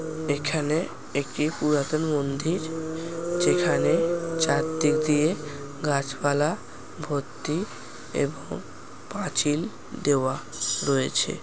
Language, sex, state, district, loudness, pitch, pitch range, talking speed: Bengali, male, West Bengal, Paschim Medinipur, -26 LUFS, 155 Hz, 145-165 Hz, 70 wpm